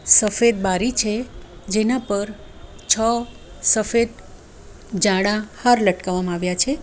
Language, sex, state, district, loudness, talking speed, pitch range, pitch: Gujarati, female, Gujarat, Valsad, -19 LUFS, 105 wpm, 195-235 Hz, 215 Hz